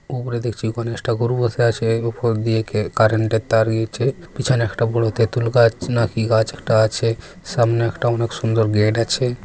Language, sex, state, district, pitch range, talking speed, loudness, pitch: Bengali, male, West Bengal, Paschim Medinipur, 110-120 Hz, 180 wpm, -19 LUFS, 115 Hz